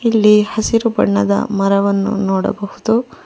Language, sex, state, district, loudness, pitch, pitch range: Kannada, female, Karnataka, Bangalore, -15 LUFS, 205 Hz, 195-220 Hz